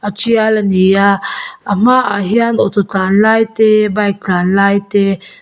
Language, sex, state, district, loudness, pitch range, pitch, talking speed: Mizo, female, Mizoram, Aizawl, -12 LUFS, 195-220 Hz, 205 Hz, 155 wpm